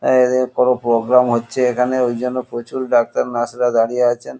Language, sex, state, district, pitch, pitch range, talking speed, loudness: Bengali, male, West Bengal, Kolkata, 125 Hz, 120-125 Hz, 165 wpm, -17 LUFS